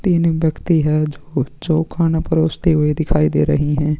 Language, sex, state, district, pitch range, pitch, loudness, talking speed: Hindi, male, Chhattisgarh, Sukma, 150-165 Hz, 155 Hz, -17 LUFS, 180 wpm